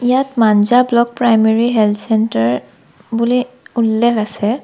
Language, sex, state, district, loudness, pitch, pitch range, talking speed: Assamese, female, Assam, Kamrup Metropolitan, -14 LUFS, 230 Hz, 215-240 Hz, 115 wpm